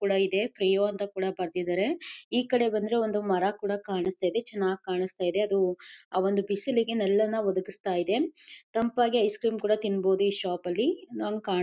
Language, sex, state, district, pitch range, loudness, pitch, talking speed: Kannada, female, Karnataka, Mysore, 190-225 Hz, -28 LUFS, 200 Hz, 170 wpm